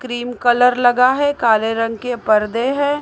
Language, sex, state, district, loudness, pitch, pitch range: Hindi, male, Maharashtra, Mumbai Suburban, -16 LUFS, 245 Hz, 230-255 Hz